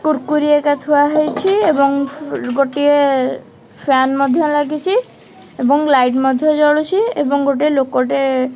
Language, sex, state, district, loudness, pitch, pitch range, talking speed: Odia, female, Odisha, Khordha, -15 LUFS, 285 Hz, 275-300 Hz, 120 wpm